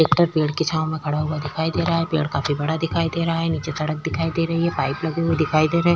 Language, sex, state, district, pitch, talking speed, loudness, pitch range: Hindi, female, Uttar Pradesh, Jyotiba Phule Nagar, 160 Hz, 300 wpm, -22 LUFS, 155-165 Hz